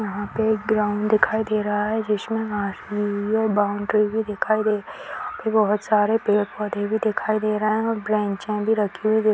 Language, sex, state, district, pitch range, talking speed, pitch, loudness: Hindi, female, Bihar, Madhepura, 210-220 Hz, 195 wpm, 215 Hz, -22 LUFS